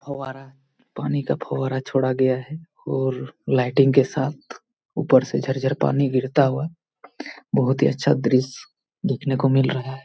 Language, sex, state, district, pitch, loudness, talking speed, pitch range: Hindi, male, Jharkhand, Jamtara, 135 Hz, -22 LUFS, 160 wpm, 130-140 Hz